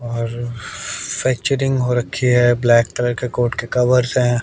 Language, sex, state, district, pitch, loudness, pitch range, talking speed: Hindi, male, Haryana, Jhajjar, 120 Hz, -18 LUFS, 120-125 Hz, 160 wpm